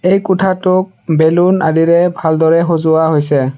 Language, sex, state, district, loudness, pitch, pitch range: Assamese, male, Assam, Sonitpur, -12 LUFS, 165 Hz, 160-185 Hz